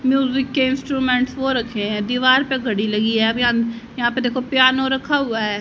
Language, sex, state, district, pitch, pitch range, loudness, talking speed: Hindi, female, Haryana, Jhajjar, 255 Hz, 230-265 Hz, -19 LUFS, 215 wpm